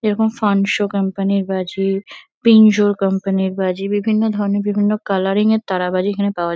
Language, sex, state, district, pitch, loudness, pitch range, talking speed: Bengali, female, West Bengal, Kolkata, 200 Hz, -17 LUFS, 195-210 Hz, 155 wpm